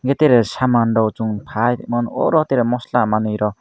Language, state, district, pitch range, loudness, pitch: Kokborok, Tripura, Dhalai, 110-125 Hz, -17 LUFS, 120 Hz